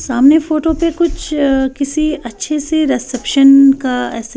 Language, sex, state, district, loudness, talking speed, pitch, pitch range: Hindi, female, Bihar, West Champaran, -13 LUFS, 125 wpm, 275 Hz, 260-310 Hz